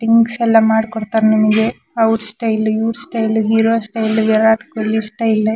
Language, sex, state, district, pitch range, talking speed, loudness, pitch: Kannada, female, Karnataka, Shimoga, 220-225 Hz, 160 wpm, -15 LUFS, 220 Hz